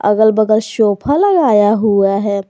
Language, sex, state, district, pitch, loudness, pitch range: Hindi, female, Jharkhand, Garhwa, 215 Hz, -13 LUFS, 205-220 Hz